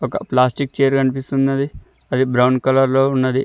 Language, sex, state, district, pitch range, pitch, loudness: Telugu, male, Telangana, Mahabubabad, 130-135 Hz, 135 Hz, -17 LUFS